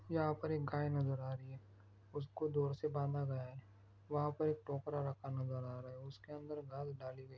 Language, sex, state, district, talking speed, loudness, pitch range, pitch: Hindi, male, Maharashtra, Aurangabad, 225 wpm, -42 LUFS, 130-150 Hz, 140 Hz